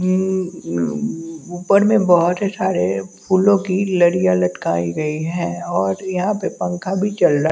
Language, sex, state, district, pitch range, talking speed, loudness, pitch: Hindi, male, Bihar, West Champaran, 150-190 Hz, 135 wpm, -18 LUFS, 175 Hz